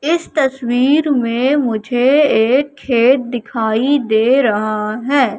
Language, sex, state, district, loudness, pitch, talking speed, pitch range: Hindi, female, Madhya Pradesh, Katni, -15 LUFS, 250 Hz, 110 wpm, 230-280 Hz